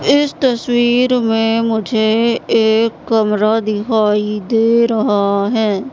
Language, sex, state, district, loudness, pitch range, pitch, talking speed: Hindi, female, Madhya Pradesh, Katni, -14 LUFS, 215-235 Hz, 225 Hz, 90 wpm